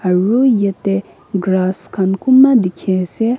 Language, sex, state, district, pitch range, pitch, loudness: Nagamese, female, Nagaland, Kohima, 185-230 Hz, 195 Hz, -15 LUFS